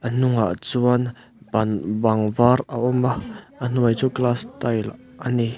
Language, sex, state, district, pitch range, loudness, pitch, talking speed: Mizo, male, Mizoram, Aizawl, 110-125 Hz, -22 LUFS, 120 Hz, 170 wpm